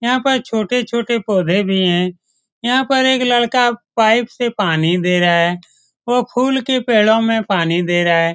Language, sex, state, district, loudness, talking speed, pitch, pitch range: Hindi, male, Bihar, Saran, -15 LUFS, 180 wpm, 225 Hz, 180-245 Hz